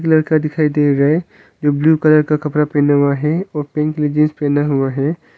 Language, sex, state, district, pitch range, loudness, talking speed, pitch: Hindi, male, Arunachal Pradesh, Longding, 145-155 Hz, -15 LUFS, 225 wpm, 150 Hz